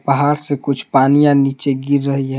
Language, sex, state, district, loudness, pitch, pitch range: Hindi, male, Jharkhand, Palamu, -15 LUFS, 140 Hz, 135-145 Hz